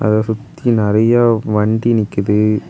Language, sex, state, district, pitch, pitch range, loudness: Tamil, male, Tamil Nadu, Kanyakumari, 110 Hz, 105-115 Hz, -15 LUFS